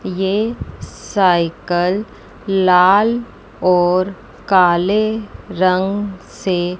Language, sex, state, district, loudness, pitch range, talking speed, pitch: Hindi, female, Chandigarh, Chandigarh, -16 LUFS, 180-205 Hz, 60 wpm, 190 Hz